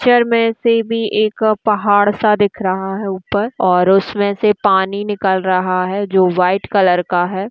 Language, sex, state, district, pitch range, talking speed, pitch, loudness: Hindi, female, Bihar, Jamui, 190-215 Hz, 170 wpm, 200 Hz, -15 LUFS